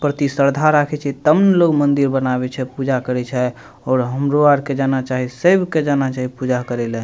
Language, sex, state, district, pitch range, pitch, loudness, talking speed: Maithili, male, Bihar, Madhepura, 125-145 Hz, 135 Hz, -17 LUFS, 220 wpm